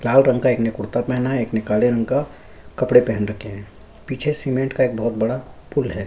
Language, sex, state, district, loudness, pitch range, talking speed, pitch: Hindi, male, Chhattisgarh, Sukma, -20 LUFS, 105-130 Hz, 235 wpm, 120 Hz